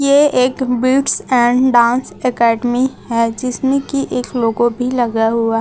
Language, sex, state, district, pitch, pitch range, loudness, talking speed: Hindi, female, Chhattisgarh, Raipur, 250 Hz, 235-260 Hz, -15 LUFS, 150 wpm